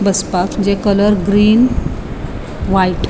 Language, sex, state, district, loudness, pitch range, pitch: Konkani, female, Goa, North and South Goa, -14 LUFS, 190-205 Hz, 200 Hz